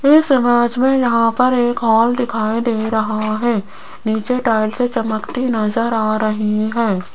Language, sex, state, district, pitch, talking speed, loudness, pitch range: Hindi, female, Rajasthan, Jaipur, 230 Hz, 150 wpm, -16 LUFS, 215-245 Hz